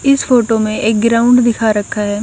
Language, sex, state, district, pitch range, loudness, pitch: Hindi, female, Punjab, Kapurthala, 215-245 Hz, -13 LUFS, 225 Hz